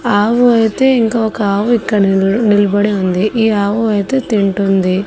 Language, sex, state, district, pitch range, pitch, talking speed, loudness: Telugu, female, Andhra Pradesh, Annamaya, 200-225 Hz, 210 Hz, 155 wpm, -13 LUFS